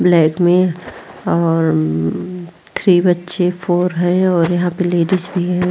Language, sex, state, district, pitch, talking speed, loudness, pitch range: Hindi, female, Uttar Pradesh, Muzaffarnagar, 175 Hz, 135 wpm, -15 LUFS, 170-180 Hz